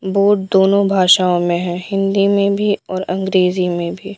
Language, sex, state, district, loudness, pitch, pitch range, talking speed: Hindi, female, Bihar, Patna, -15 LUFS, 190 Hz, 180-200 Hz, 175 wpm